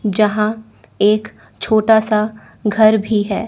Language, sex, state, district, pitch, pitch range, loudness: Hindi, female, Chandigarh, Chandigarh, 215 Hz, 210-220 Hz, -16 LUFS